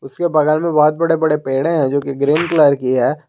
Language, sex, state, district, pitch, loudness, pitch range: Hindi, male, Jharkhand, Garhwa, 150 Hz, -15 LUFS, 140-160 Hz